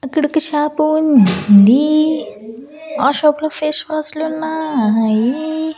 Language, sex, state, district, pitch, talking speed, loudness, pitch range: Telugu, female, Andhra Pradesh, Annamaya, 300 Hz, 95 wpm, -14 LUFS, 255-310 Hz